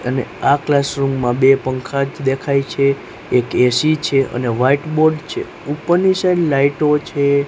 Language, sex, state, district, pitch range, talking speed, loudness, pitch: Gujarati, male, Gujarat, Gandhinagar, 135-150 Hz, 160 wpm, -17 LUFS, 140 Hz